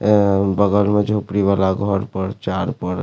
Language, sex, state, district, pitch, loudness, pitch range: Maithili, male, Bihar, Supaul, 100 Hz, -18 LUFS, 95-105 Hz